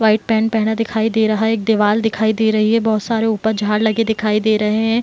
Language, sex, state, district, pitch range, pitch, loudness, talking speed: Hindi, female, Bihar, Gopalganj, 215-225 Hz, 220 Hz, -16 LUFS, 300 wpm